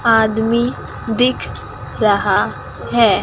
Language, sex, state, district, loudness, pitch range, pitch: Hindi, female, Chandigarh, Chandigarh, -17 LUFS, 220-245 Hz, 230 Hz